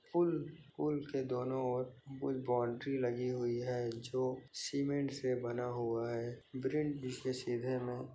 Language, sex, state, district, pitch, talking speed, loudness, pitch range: Hindi, male, Chhattisgarh, Bastar, 130 Hz, 135 wpm, -38 LUFS, 120-135 Hz